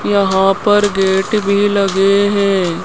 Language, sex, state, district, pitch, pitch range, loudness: Hindi, female, Rajasthan, Jaipur, 200 Hz, 195-205 Hz, -13 LUFS